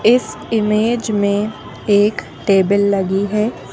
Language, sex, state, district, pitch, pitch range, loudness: Hindi, female, Madhya Pradesh, Bhopal, 210 Hz, 200-220 Hz, -16 LUFS